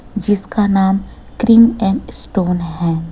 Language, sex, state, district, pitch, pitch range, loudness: Hindi, female, Chhattisgarh, Raipur, 195 Hz, 180-215 Hz, -15 LUFS